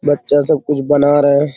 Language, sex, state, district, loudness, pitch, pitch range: Hindi, male, Bihar, Araria, -13 LUFS, 145 Hz, 140-145 Hz